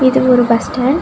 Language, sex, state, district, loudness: Tamil, female, Tamil Nadu, Nilgiris, -13 LUFS